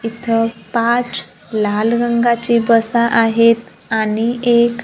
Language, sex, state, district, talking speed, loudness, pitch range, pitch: Marathi, female, Maharashtra, Gondia, 100 wpm, -15 LUFS, 225-235 Hz, 230 Hz